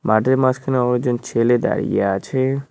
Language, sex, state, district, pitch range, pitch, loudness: Bengali, male, West Bengal, Cooch Behar, 115-130 Hz, 125 Hz, -19 LUFS